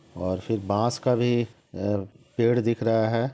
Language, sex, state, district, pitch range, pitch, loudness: Hindi, male, Bihar, Sitamarhi, 100-120 Hz, 115 Hz, -25 LUFS